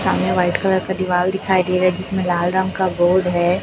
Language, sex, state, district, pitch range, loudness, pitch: Hindi, male, Chhattisgarh, Raipur, 180-190 Hz, -18 LUFS, 185 Hz